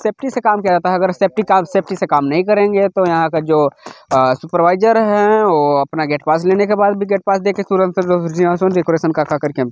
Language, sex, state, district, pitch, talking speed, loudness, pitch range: Hindi, male, Chhattisgarh, Bilaspur, 185 Hz, 185 wpm, -15 LUFS, 160-200 Hz